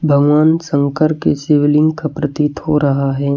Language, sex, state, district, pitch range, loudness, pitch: Hindi, male, Chhattisgarh, Raipur, 140-155 Hz, -14 LUFS, 150 Hz